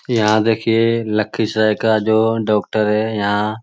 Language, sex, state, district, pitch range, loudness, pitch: Magahi, male, Bihar, Lakhisarai, 105-115 Hz, -17 LUFS, 110 Hz